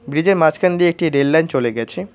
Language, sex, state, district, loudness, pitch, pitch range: Bengali, male, West Bengal, Cooch Behar, -16 LUFS, 160 Hz, 140-175 Hz